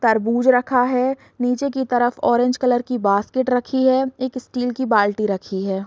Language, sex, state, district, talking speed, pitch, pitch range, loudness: Hindi, female, Bihar, East Champaran, 185 wpm, 245 Hz, 225-260 Hz, -19 LUFS